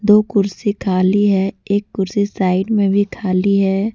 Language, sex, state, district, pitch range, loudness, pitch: Hindi, female, Jharkhand, Deoghar, 190-205 Hz, -17 LUFS, 200 Hz